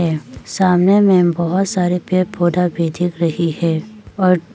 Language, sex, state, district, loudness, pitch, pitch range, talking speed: Hindi, female, Arunachal Pradesh, Papum Pare, -16 LUFS, 175 Hz, 170-185 Hz, 160 wpm